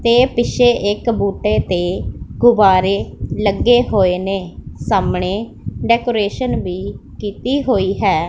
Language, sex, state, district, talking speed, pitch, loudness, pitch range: Punjabi, female, Punjab, Pathankot, 110 wpm, 205 Hz, -16 LUFS, 195-240 Hz